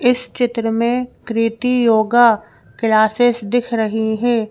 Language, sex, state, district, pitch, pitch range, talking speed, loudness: Hindi, female, Madhya Pradesh, Bhopal, 230 Hz, 220-245 Hz, 120 wpm, -17 LUFS